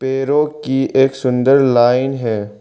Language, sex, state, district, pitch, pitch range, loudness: Hindi, male, Arunachal Pradesh, Lower Dibang Valley, 130 Hz, 125-135 Hz, -15 LUFS